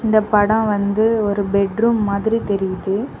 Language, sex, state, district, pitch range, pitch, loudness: Tamil, female, Tamil Nadu, Kanyakumari, 200-220 Hz, 205 Hz, -18 LUFS